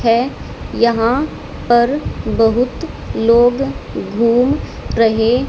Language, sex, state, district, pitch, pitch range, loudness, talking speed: Hindi, female, Haryana, Charkhi Dadri, 235 Hz, 230-250 Hz, -16 LUFS, 75 wpm